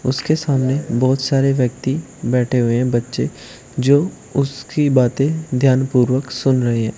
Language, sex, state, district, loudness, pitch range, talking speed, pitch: Hindi, male, Uttar Pradesh, Shamli, -18 LUFS, 125-140 Hz, 145 wpm, 130 Hz